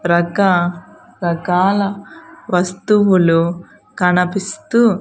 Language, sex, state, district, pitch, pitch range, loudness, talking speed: Telugu, female, Andhra Pradesh, Sri Satya Sai, 185 Hz, 175-200 Hz, -16 LUFS, 50 wpm